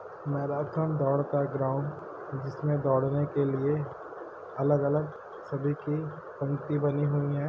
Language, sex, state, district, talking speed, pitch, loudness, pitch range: Hindi, male, Uttar Pradesh, Hamirpur, 135 wpm, 145 Hz, -30 LUFS, 140-150 Hz